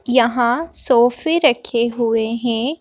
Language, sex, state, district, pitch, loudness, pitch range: Hindi, female, Madhya Pradesh, Bhopal, 240 Hz, -17 LUFS, 235-260 Hz